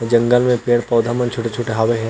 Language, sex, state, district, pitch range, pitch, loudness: Chhattisgarhi, male, Chhattisgarh, Rajnandgaon, 115-120 Hz, 120 Hz, -17 LUFS